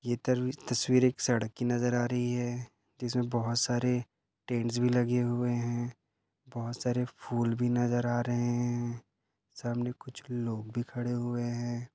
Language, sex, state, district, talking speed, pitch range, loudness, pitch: Hindi, male, Goa, North and South Goa, 165 wpm, 120-125 Hz, -31 LUFS, 120 Hz